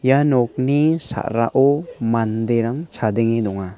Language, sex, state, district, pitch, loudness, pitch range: Garo, male, Meghalaya, West Garo Hills, 120 Hz, -19 LUFS, 115-140 Hz